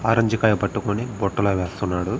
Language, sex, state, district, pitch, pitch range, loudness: Telugu, male, Andhra Pradesh, Srikakulam, 100 Hz, 95-110 Hz, -22 LUFS